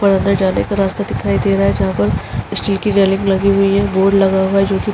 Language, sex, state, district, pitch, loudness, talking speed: Hindi, female, Uttar Pradesh, Jalaun, 195 Hz, -15 LUFS, 280 wpm